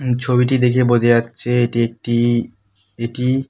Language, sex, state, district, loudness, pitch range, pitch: Bengali, male, West Bengal, Kolkata, -17 LUFS, 115-125 Hz, 120 Hz